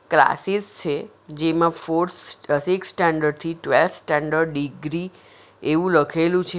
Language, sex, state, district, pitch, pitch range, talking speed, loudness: Gujarati, female, Gujarat, Valsad, 165 Hz, 155-180 Hz, 120 wpm, -22 LUFS